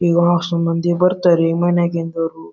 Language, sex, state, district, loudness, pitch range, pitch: Kannada, male, Karnataka, Gulbarga, -17 LUFS, 165-175 Hz, 170 Hz